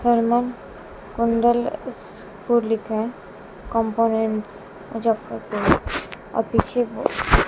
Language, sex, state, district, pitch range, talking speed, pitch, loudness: Hindi, female, Bihar, West Champaran, 220-240 Hz, 90 wpm, 230 Hz, -22 LUFS